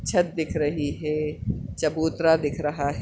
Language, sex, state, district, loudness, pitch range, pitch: Hindi, male, Chhattisgarh, Bastar, -25 LUFS, 145-160 Hz, 150 Hz